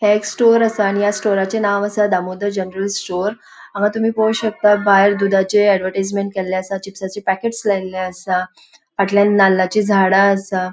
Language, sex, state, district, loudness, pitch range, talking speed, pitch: Konkani, female, Goa, North and South Goa, -16 LUFS, 190-210 Hz, 160 wpm, 200 Hz